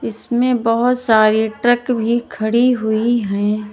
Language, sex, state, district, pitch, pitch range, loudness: Hindi, female, Uttar Pradesh, Lalitpur, 230 Hz, 220-240 Hz, -16 LUFS